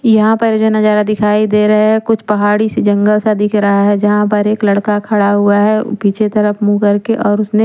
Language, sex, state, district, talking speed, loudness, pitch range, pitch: Hindi, female, Chandigarh, Chandigarh, 250 wpm, -12 LUFS, 205-215 Hz, 210 Hz